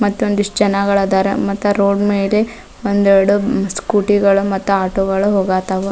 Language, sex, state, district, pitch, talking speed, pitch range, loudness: Kannada, female, Karnataka, Dharwad, 200 Hz, 120 wpm, 195-205 Hz, -15 LUFS